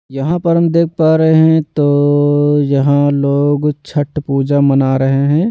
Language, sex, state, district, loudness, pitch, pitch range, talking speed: Hindi, male, Delhi, New Delhi, -13 LUFS, 145 Hz, 140-160 Hz, 165 wpm